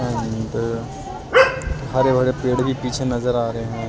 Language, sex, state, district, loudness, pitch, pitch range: Hindi, male, Delhi, New Delhi, -20 LUFS, 125 Hz, 115-130 Hz